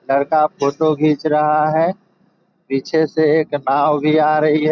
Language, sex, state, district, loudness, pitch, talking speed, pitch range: Hindi, male, Bihar, Begusarai, -16 LUFS, 155 Hz, 165 wpm, 150-160 Hz